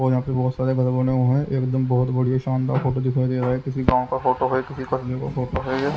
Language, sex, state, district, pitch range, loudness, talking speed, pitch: Hindi, male, Haryana, Jhajjar, 125-130 Hz, -22 LUFS, 290 wpm, 130 Hz